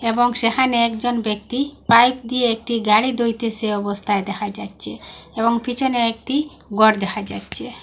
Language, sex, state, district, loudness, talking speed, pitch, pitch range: Bengali, female, Assam, Hailakandi, -19 LUFS, 145 wpm, 230 Hz, 215-245 Hz